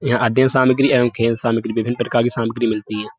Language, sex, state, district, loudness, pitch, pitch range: Hindi, male, Uttar Pradesh, Budaun, -17 LUFS, 115 Hz, 115-125 Hz